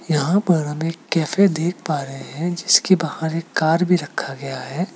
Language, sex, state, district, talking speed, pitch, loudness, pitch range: Hindi, male, Meghalaya, West Garo Hills, 205 wpm, 165 Hz, -20 LUFS, 150-175 Hz